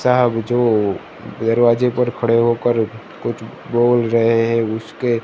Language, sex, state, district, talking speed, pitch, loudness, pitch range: Hindi, male, Gujarat, Gandhinagar, 125 wpm, 115 Hz, -17 LUFS, 115-120 Hz